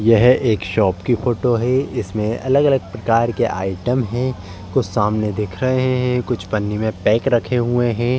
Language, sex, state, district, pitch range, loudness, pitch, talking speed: Hindi, male, Uttar Pradesh, Jalaun, 105-125 Hz, -18 LUFS, 120 Hz, 185 wpm